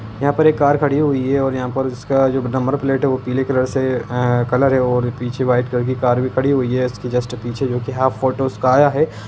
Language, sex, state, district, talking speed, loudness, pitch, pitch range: Hindi, male, Bihar, Jamui, 265 wpm, -17 LUFS, 130 Hz, 125-135 Hz